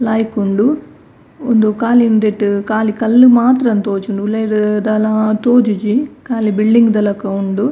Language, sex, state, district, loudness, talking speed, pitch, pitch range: Tulu, female, Karnataka, Dakshina Kannada, -13 LUFS, 140 wpm, 215 Hz, 210-235 Hz